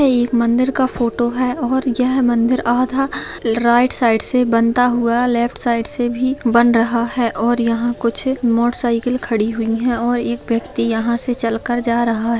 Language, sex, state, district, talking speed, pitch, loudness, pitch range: Hindi, female, Bihar, Begusarai, 205 wpm, 240 Hz, -17 LUFS, 235-250 Hz